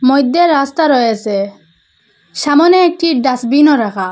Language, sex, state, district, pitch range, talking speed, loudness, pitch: Bengali, female, Assam, Hailakandi, 220-310 Hz, 100 wpm, -12 LUFS, 275 Hz